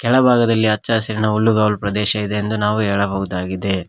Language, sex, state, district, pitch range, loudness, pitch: Kannada, male, Karnataka, Koppal, 100-110 Hz, -17 LUFS, 105 Hz